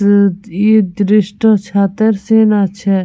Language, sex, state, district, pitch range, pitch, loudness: Bengali, female, West Bengal, Purulia, 200-215 Hz, 205 Hz, -12 LUFS